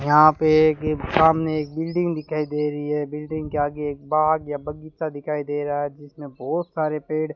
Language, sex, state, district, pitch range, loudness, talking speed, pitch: Hindi, male, Rajasthan, Bikaner, 145-155 Hz, -22 LUFS, 210 wpm, 150 Hz